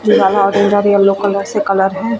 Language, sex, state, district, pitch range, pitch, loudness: Hindi, female, Chhattisgarh, Bastar, 195-205 Hz, 200 Hz, -13 LUFS